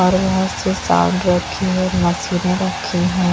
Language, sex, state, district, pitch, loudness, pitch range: Hindi, female, Haryana, Rohtak, 180 Hz, -18 LUFS, 175-185 Hz